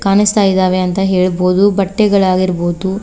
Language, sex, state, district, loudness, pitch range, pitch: Kannada, female, Karnataka, Koppal, -13 LUFS, 185-200 Hz, 190 Hz